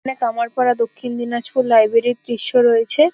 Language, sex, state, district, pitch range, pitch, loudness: Bengali, female, West Bengal, Dakshin Dinajpur, 235-255 Hz, 240 Hz, -17 LUFS